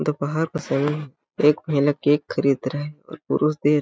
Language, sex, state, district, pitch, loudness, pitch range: Hindi, male, Chhattisgarh, Balrampur, 145 Hz, -22 LUFS, 145-150 Hz